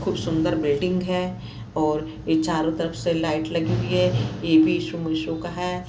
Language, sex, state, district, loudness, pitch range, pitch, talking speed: Hindi, female, Chhattisgarh, Bastar, -23 LUFS, 155-170 Hz, 165 Hz, 145 wpm